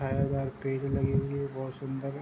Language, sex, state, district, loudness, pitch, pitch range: Hindi, male, Bihar, Sitamarhi, -32 LUFS, 135 Hz, 135-140 Hz